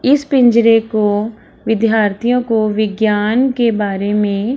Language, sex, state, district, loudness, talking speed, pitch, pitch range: Hindi, female, Bihar, Samastipur, -14 LUFS, 130 wpm, 220 Hz, 210-240 Hz